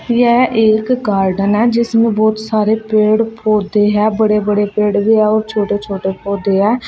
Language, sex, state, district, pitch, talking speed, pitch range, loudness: Hindi, female, Uttar Pradesh, Shamli, 215 Hz, 175 wpm, 205-220 Hz, -14 LUFS